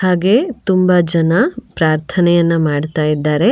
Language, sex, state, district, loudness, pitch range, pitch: Kannada, female, Karnataka, Bangalore, -14 LUFS, 155-185 Hz, 175 Hz